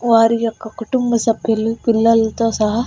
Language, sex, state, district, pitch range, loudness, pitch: Telugu, female, Andhra Pradesh, Annamaya, 225-230 Hz, -16 LUFS, 225 Hz